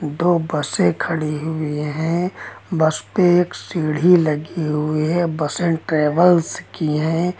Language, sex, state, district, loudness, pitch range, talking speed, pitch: Hindi, male, Uttar Pradesh, Lucknow, -19 LUFS, 150-175 Hz, 130 wpm, 160 Hz